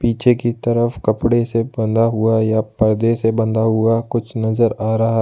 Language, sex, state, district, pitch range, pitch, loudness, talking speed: Hindi, male, Jharkhand, Ranchi, 110-115 Hz, 115 Hz, -17 LUFS, 185 wpm